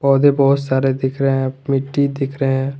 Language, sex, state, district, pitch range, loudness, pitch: Hindi, male, Jharkhand, Garhwa, 135-140 Hz, -17 LUFS, 135 Hz